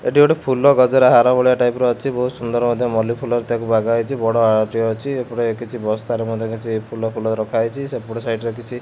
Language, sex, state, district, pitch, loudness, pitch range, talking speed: Odia, male, Odisha, Khordha, 120 Hz, -18 LUFS, 115-125 Hz, 225 wpm